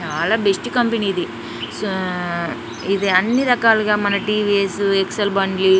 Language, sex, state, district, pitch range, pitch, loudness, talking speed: Telugu, female, Telangana, Nalgonda, 190-210 Hz, 200 Hz, -18 LUFS, 115 wpm